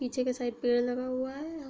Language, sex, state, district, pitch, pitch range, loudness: Hindi, female, Uttar Pradesh, Hamirpur, 255 Hz, 245-260 Hz, -31 LUFS